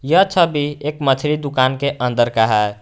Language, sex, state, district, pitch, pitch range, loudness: Hindi, male, Jharkhand, Garhwa, 140 Hz, 125-150 Hz, -17 LUFS